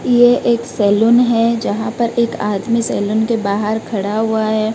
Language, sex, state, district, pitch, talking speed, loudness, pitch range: Hindi, female, Odisha, Malkangiri, 225 Hz, 175 wpm, -15 LUFS, 210-235 Hz